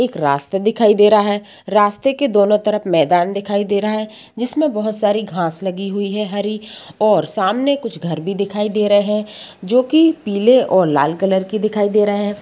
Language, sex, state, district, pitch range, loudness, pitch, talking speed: Hindi, female, Bihar, Sitamarhi, 200-215 Hz, -16 LUFS, 210 Hz, 210 wpm